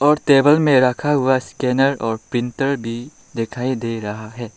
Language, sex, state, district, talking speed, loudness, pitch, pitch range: Hindi, male, Arunachal Pradesh, Lower Dibang Valley, 170 wpm, -18 LUFS, 125 Hz, 115-140 Hz